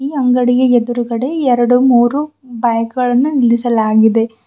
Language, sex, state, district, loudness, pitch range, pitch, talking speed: Kannada, female, Karnataka, Bidar, -13 LUFS, 235-255 Hz, 245 Hz, 105 wpm